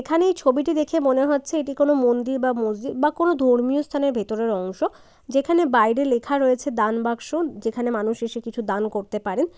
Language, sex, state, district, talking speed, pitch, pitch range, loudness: Bengali, female, West Bengal, Dakshin Dinajpur, 190 wpm, 255 Hz, 230-290 Hz, -22 LUFS